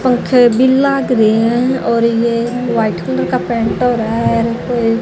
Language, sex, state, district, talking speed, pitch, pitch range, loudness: Hindi, female, Haryana, Jhajjar, 165 wpm, 235 Hz, 225-245 Hz, -14 LUFS